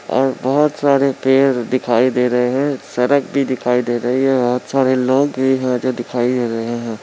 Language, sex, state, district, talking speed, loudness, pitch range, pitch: Hindi, male, Bihar, Muzaffarpur, 205 wpm, -16 LUFS, 125-135 Hz, 130 Hz